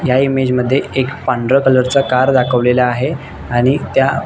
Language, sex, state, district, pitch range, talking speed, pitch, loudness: Marathi, male, Maharashtra, Nagpur, 125-135 Hz, 170 wpm, 130 Hz, -14 LUFS